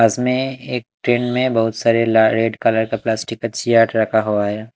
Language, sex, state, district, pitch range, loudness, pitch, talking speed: Hindi, male, Punjab, Kapurthala, 110-120 Hz, -17 LUFS, 115 Hz, 215 wpm